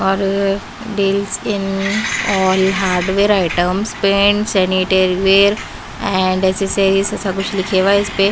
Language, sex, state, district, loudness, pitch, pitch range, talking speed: Hindi, female, Punjab, Pathankot, -15 LUFS, 195 Hz, 190-200 Hz, 115 wpm